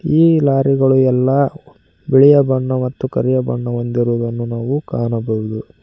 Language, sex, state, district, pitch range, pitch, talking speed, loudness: Kannada, male, Karnataka, Koppal, 120-140 Hz, 130 Hz, 115 wpm, -15 LUFS